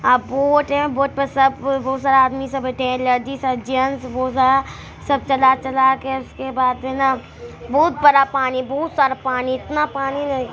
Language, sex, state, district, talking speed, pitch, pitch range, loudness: Hindi, female, Bihar, Araria, 180 wpm, 265 Hz, 260-275 Hz, -18 LUFS